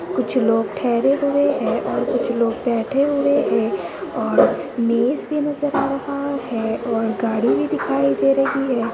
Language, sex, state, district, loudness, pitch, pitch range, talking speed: Hindi, female, Uttar Pradesh, Deoria, -20 LUFS, 240 Hz, 225-280 Hz, 160 wpm